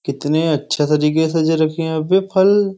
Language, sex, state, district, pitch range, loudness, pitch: Hindi, male, Uttar Pradesh, Jyotiba Phule Nagar, 150-190 Hz, -16 LUFS, 160 Hz